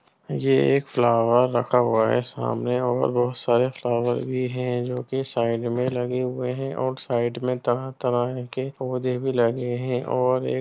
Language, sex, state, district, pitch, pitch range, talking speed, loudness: Hindi, male, Bihar, Jamui, 125 Hz, 120-125 Hz, 180 wpm, -24 LUFS